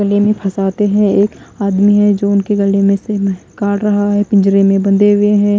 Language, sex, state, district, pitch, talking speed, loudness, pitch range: Hindi, female, Haryana, Jhajjar, 205 Hz, 215 wpm, -13 LUFS, 195-205 Hz